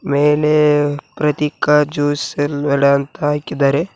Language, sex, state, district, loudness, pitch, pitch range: Kannada, male, Karnataka, Koppal, -16 LUFS, 145 Hz, 145-150 Hz